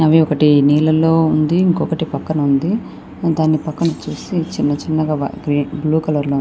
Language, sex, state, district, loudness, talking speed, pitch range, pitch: Telugu, female, Andhra Pradesh, Anantapur, -16 LUFS, 150 wpm, 150-160 Hz, 155 Hz